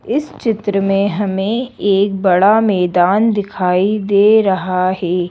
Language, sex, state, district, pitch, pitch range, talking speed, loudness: Hindi, female, Madhya Pradesh, Bhopal, 200 Hz, 185-210 Hz, 125 wpm, -14 LUFS